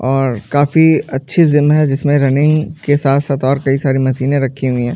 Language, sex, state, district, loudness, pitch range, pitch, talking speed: Hindi, male, Maharashtra, Mumbai Suburban, -13 LUFS, 135-145 Hz, 140 Hz, 205 wpm